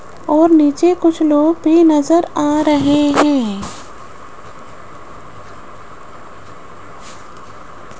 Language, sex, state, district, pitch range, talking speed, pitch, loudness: Hindi, female, Rajasthan, Jaipur, 295-330 Hz, 70 wpm, 305 Hz, -13 LUFS